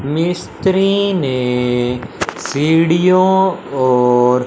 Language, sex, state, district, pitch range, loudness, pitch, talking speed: Hindi, male, Punjab, Fazilka, 125-185 Hz, -15 LUFS, 150 Hz, 55 wpm